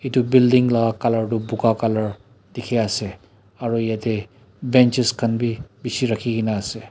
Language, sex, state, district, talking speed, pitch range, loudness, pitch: Nagamese, male, Nagaland, Dimapur, 165 wpm, 110-125 Hz, -20 LUFS, 115 Hz